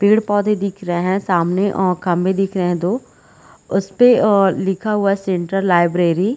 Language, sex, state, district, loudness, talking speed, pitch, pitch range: Hindi, female, Chhattisgarh, Bilaspur, -17 LUFS, 190 wpm, 195 Hz, 180-200 Hz